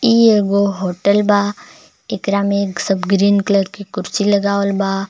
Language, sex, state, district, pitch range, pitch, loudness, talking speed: Bhojpuri, male, Jharkhand, Palamu, 195-205 Hz, 200 Hz, -16 LUFS, 165 wpm